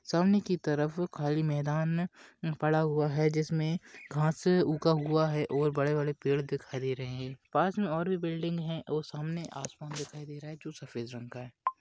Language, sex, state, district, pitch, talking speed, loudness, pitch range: Hindi, male, Maharashtra, Pune, 155 Hz, 205 wpm, -31 LUFS, 145-165 Hz